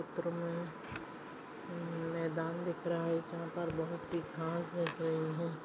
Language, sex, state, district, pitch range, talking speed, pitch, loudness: Hindi, female, Maharashtra, Aurangabad, 165-170 Hz, 150 wpm, 170 Hz, -39 LUFS